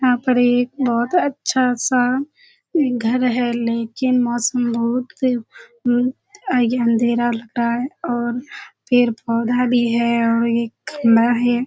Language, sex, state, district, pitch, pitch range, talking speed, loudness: Hindi, female, Bihar, Kishanganj, 245 Hz, 235-260 Hz, 130 wpm, -19 LUFS